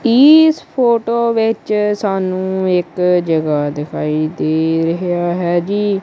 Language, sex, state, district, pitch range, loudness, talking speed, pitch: Punjabi, male, Punjab, Kapurthala, 165-225 Hz, -15 LUFS, 110 wpm, 185 Hz